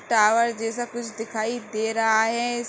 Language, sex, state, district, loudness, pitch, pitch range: Hindi, female, Uttar Pradesh, Hamirpur, -24 LUFS, 225 Hz, 220-240 Hz